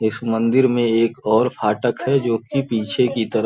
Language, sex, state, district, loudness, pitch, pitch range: Hindi, male, Uttar Pradesh, Gorakhpur, -19 LUFS, 115 Hz, 115-130 Hz